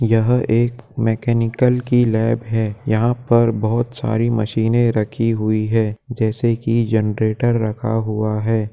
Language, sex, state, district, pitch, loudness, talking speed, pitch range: Hindi, male, Jharkhand, Jamtara, 115 Hz, -18 LUFS, 135 wpm, 110-120 Hz